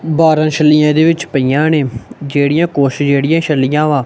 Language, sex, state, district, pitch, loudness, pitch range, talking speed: Punjabi, male, Punjab, Kapurthala, 150 Hz, -12 LUFS, 140-155 Hz, 160 wpm